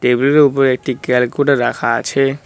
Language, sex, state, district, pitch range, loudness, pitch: Bengali, male, West Bengal, Cooch Behar, 125-140 Hz, -14 LUFS, 135 Hz